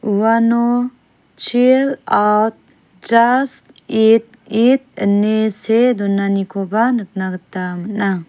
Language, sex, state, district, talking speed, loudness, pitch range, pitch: Garo, female, Meghalaya, South Garo Hills, 85 wpm, -16 LUFS, 200-240 Hz, 220 Hz